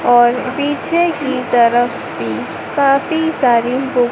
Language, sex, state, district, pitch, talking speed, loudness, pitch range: Hindi, female, Madhya Pradesh, Dhar, 260 Hz, 130 wpm, -15 LUFS, 240-285 Hz